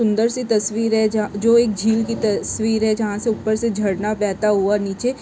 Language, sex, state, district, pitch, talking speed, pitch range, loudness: Hindi, female, Maharashtra, Dhule, 220 Hz, 220 wpm, 210-225 Hz, -19 LUFS